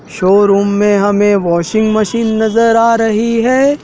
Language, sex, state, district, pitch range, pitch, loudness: Hindi, male, Madhya Pradesh, Dhar, 205-230 Hz, 220 Hz, -11 LUFS